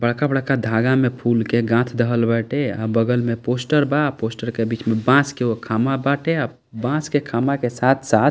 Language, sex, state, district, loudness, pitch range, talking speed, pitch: Bhojpuri, male, Bihar, East Champaran, -20 LUFS, 115-140 Hz, 210 wpm, 120 Hz